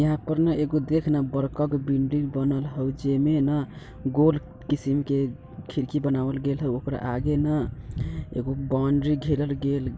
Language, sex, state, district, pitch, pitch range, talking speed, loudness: Bajjika, male, Bihar, Vaishali, 140 Hz, 135-150 Hz, 175 wpm, -26 LUFS